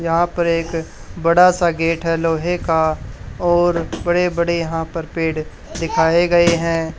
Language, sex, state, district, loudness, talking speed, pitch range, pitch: Hindi, male, Haryana, Charkhi Dadri, -18 LUFS, 155 wpm, 165-175 Hz, 165 Hz